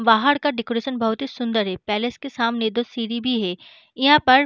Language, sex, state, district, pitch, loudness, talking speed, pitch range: Hindi, female, Maharashtra, Chandrapur, 240 Hz, -21 LUFS, 230 wpm, 225-275 Hz